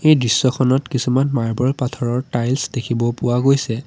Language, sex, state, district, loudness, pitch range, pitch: Assamese, male, Assam, Sonitpur, -18 LUFS, 120-135 Hz, 125 Hz